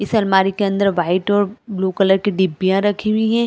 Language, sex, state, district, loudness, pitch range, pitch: Hindi, female, Chhattisgarh, Bilaspur, -17 LUFS, 190-205 Hz, 200 Hz